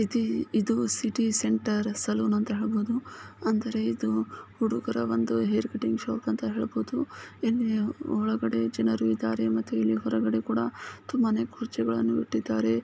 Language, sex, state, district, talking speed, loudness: Kannada, female, Karnataka, Bijapur, 105 wpm, -28 LUFS